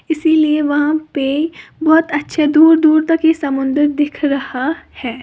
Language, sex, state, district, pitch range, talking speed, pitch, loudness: Hindi, female, Uttar Pradesh, Lalitpur, 285-320 Hz, 150 wpm, 300 Hz, -14 LUFS